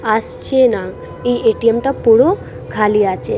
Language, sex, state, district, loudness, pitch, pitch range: Bengali, female, West Bengal, Purulia, -15 LUFS, 230 Hz, 215-265 Hz